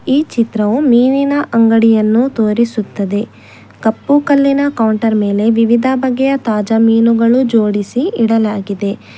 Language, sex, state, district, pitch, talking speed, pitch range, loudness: Kannada, female, Karnataka, Bangalore, 230 Hz, 90 wpm, 215-260 Hz, -13 LUFS